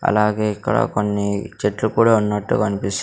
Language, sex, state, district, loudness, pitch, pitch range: Telugu, male, Andhra Pradesh, Sri Satya Sai, -19 LUFS, 105 Hz, 100-105 Hz